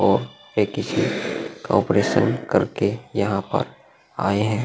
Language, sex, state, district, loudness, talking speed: Hindi, male, Uttar Pradesh, Jalaun, -22 LUFS, 130 wpm